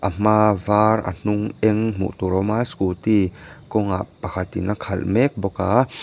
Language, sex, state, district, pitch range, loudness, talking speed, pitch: Mizo, male, Mizoram, Aizawl, 95-110 Hz, -21 LUFS, 210 wpm, 105 Hz